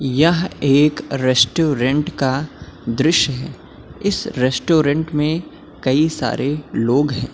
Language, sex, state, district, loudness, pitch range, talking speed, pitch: Hindi, male, Uttar Pradesh, Lucknow, -18 LUFS, 130-155 Hz, 105 wpm, 145 Hz